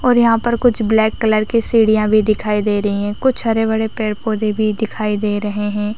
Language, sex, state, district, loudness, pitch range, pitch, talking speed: Hindi, female, Chhattisgarh, Raigarh, -15 LUFS, 210-225 Hz, 215 Hz, 220 wpm